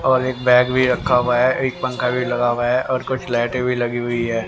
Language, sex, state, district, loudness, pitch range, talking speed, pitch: Hindi, male, Haryana, Rohtak, -18 LUFS, 120-130 Hz, 255 wpm, 125 Hz